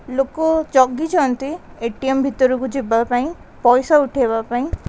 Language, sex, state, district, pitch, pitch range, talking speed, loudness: Odia, female, Odisha, Khordha, 265 Hz, 245-285 Hz, 135 wpm, -18 LUFS